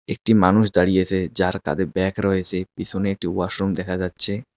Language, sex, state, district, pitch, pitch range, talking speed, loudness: Bengali, male, West Bengal, Cooch Behar, 95 Hz, 90-95 Hz, 170 wpm, -21 LUFS